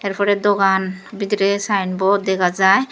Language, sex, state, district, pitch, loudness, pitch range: Chakma, female, Tripura, Dhalai, 200 Hz, -18 LUFS, 190-205 Hz